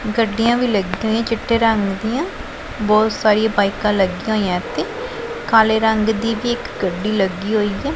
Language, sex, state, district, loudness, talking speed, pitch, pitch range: Punjabi, female, Punjab, Pathankot, -18 LUFS, 165 wpm, 220 Hz, 205-230 Hz